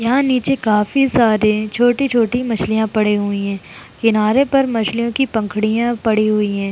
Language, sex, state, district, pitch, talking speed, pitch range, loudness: Hindi, female, Uttar Pradesh, Jalaun, 220 Hz, 150 wpm, 215-245 Hz, -16 LUFS